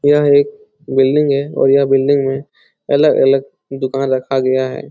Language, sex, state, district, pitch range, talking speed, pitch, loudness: Hindi, male, Bihar, Supaul, 135-145 Hz, 160 wpm, 135 Hz, -14 LUFS